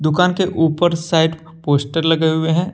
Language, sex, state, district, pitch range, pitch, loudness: Hindi, male, Jharkhand, Deoghar, 160-170 Hz, 160 Hz, -17 LUFS